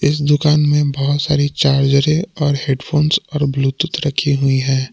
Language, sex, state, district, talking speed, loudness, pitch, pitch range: Hindi, male, Jharkhand, Palamu, 170 wpm, -16 LUFS, 145 Hz, 140-150 Hz